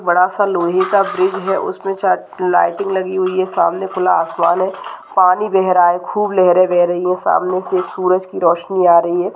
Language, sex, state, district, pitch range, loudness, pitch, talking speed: Hindi, female, Uttarakhand, Tehri Garhwal, 180-190 Hz, -15 LUFS, 185 Hz, 210 wpm